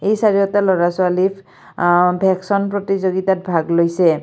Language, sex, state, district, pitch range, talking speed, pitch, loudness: Assamese, female, Assam, Kamrup Metropolitan, 175-200 Hz, 115 wpm, 190 Hz, -17 LUFS